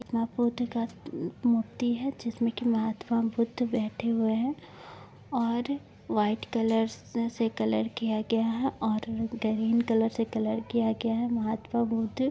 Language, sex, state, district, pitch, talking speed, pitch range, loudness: Bhojpuri, female, Bihar, Saran, 230 Hz, 155 wpm, 225-235 Hz, -29 LUFS